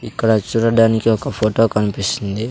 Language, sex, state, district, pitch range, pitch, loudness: Telugu, male, Andhra Pradesh, Sri Satya Sai, 105-115 Hz, 115 Hz, -17 LUFS